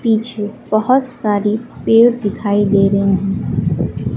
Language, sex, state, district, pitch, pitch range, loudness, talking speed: Hindi, female, Bihar, West Champaran, 210 Hz, 205-225 Hz, -15 LUFS, 115 wpm